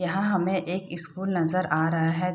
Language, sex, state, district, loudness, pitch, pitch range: Hindi, female, Bihar, Saharsa, -22 LUFS, 180 Hz, 165-185 Hz